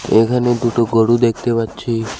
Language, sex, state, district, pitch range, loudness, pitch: Bengali, male, West Bengal, Cooch Behar, 115-120 Hz, -16 LUFS, 115 Hz